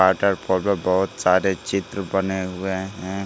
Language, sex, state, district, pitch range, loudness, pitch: Hindi, male, Bihar, Jamui, 95-100 Hz, -22 LUFS, 95 Hz